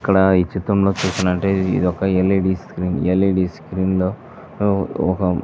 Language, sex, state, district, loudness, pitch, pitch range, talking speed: Telugu, male, Andhra Pradesh, Visakhapatnam, -19 LUFS, 95 Hz, 90-95 Hz, 190 wpm